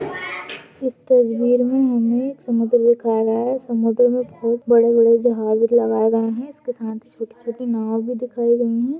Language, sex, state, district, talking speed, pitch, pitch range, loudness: Hindi, female, Goa, North and South Goa, 175 wpm, 235 Hz, 230-245 Hz, -19 LUFS